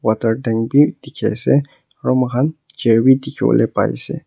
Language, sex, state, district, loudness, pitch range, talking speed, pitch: Nagamese, male, Nagaland, Kohima, -17 LUFS, 115-140 Hz, 180 wpm, 130 Hz